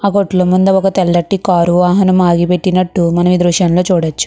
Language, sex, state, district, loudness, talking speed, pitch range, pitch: Telugu, female, Andhra Pradesh, Chittoor, -12 LUFS, 170 wpm, 175-190 Hz, 180 Hz